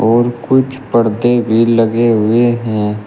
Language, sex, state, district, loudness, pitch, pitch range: Hindi, male, Uttar Pradesh, Shamli, -13 LUFS, 115 Hz, 110-120 Hz